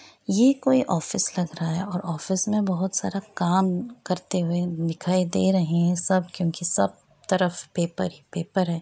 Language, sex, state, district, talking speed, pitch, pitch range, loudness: Hindi, female, Bihar, East Champaran, 175 wpm, 180 Hz, 170-190 Hz, -24 LUFS